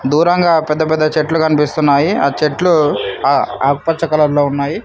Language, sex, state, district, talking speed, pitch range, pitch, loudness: Telugu, male, Telangana, Mahabubabad, 125 wpm, 145-160 Hz, 155 Hz, -14 LUFS